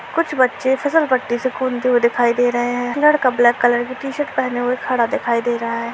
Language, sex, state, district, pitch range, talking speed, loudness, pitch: Hindi, female, Uttar Pradesh, Hamirpur, 240-260 Hz, 230 wpm, -18 LUFS, 245 Hz